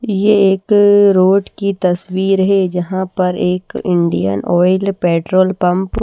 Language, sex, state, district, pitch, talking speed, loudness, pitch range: Hindi, female, Bihar, Patna, 190 Hz, 140 wpm, -14 LUFS, 180-200 Hz